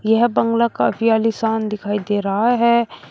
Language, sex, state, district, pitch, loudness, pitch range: Hindi, male, Uttar Pradesh, Shamli, 225 Hz, -18 LUFS, 210-235 Hz